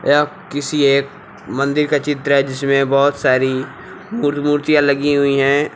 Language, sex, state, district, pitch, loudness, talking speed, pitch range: Hindi, male, Uttar Pradesh, Lucknow, 145 Hz, -16 LUFS, 145 wpm, 140-150 Hz